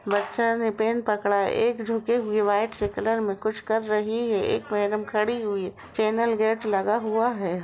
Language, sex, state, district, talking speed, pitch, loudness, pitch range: Hindi, female, Uttar Pradesh, Jalaun, 205 wpm, 215 Hz, -25 LUFS, 205-225 Hz